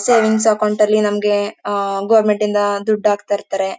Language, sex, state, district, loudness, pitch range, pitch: Kannada, female, Karnataka, Mysore, -16 LUFS, 205-215 Hz, 210 Hz